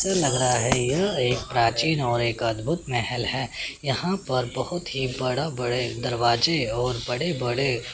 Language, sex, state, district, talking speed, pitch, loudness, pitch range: Hindi, male, Chandigarh, Chandigarh, 160 wpm, 125 Hz, -24 LUFS, 120-150 Hz